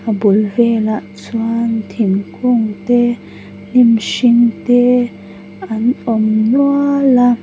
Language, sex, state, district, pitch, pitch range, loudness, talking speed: Mizo, female, Mizoram, Aizawl, 230 Hz, 215-245 Hz, -14 LUFS, 95 wpm